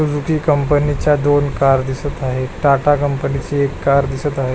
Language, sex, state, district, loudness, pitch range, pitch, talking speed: Marathi, male, Maharashtra, Pune, -16 LUFS, 135-145 Hz, 145 Hz, 170 wpm